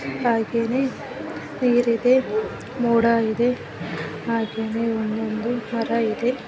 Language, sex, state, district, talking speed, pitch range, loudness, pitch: Kannada, female, Karnataka, Gulbarga, 85 wpm, 220-245 Hz, -23 LUFS, 230 Hz